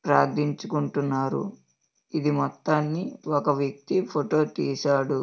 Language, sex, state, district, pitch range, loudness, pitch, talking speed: Telugu, male, Andhra Pradesh, Visakhapatnam, 135-150 Hz, -26 LUFS, 145 Hz, 90 wpm